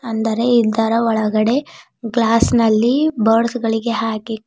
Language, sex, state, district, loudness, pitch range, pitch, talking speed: Kannada, female, Karnataka, Bidar, -16 LUFS, 225-235 Hz, 225 Hz, 105 wpm